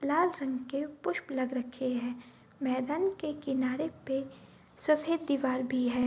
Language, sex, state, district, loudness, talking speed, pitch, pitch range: Hindi, female, Bihar, Bhagalpur, -33 LUFS, 150 wpm, 270 Hz, 255-300 Hz